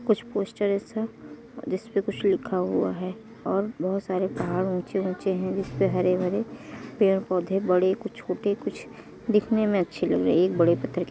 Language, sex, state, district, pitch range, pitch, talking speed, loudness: Hindi, female, Uttar Pradesh, Etah, 185-205 Hz, 195 Hz, 195 wpm, -26 LUFS